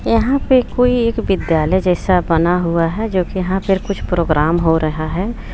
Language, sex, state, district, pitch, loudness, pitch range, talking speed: Hindi, female, Jharkhand, Garhwa, 185 Hz, -16 LUFS, 165-220 Hz, 195 wpm